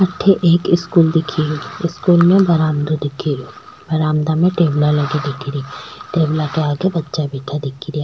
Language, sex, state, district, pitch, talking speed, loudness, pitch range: Rajasthani, female, Rajasthan, Churu, 155 Hz, 180 wpm, -16 LUFS, 150-170 Hz